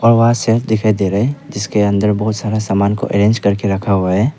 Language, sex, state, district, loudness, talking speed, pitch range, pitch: Hindi, male, Arunachal Pradesh, Papum Pare, -15 LUFS, 235 wpm, 100-115 Hz, 105 Hz